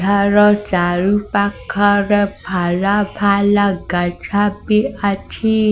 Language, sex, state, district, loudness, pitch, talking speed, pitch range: Odia, female, Odisha, Sambalpur, -16 LUFS, 200 Hz, 85 wpm, 195-205 Hz